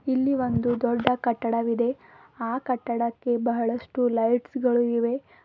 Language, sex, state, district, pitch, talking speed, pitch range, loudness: Kannada, female, Karnataka, Bidar, 240 Hz, 110 wpm, 235-250 Hz, -25 LUFS